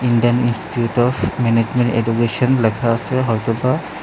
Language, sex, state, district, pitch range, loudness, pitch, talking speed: Bengali, male, Tripura, West Tripura, 115-125 Hz, -17 LUFS, 120 Hz, 135 wpm